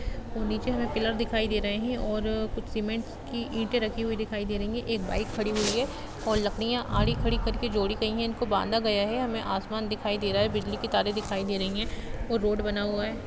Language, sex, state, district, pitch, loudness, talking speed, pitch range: Hindi, female, Chhattisgarh, Raigarh, 220 Hz, -29 LUFS, 240 wpm, 210-230 Hz